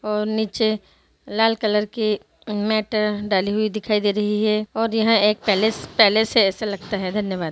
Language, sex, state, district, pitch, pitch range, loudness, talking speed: Hindi, female, Andhra Pradesh, Anantapur, 215 Hz, 210-220 Hz, -20 LUFS, 175 wpm